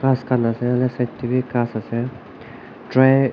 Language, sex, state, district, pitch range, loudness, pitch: Nagamese, male, Nagaland, Kohima, 120-130 Hz, -20 LUFS, 125 Hz